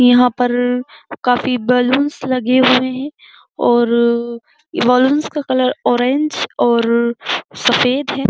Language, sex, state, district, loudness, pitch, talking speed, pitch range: Hindi, female, Uttar Pradesh, Jyotiba Phule Nagar, -15 LUFS, 250 Hz, 110 wpm, 245-260 Hz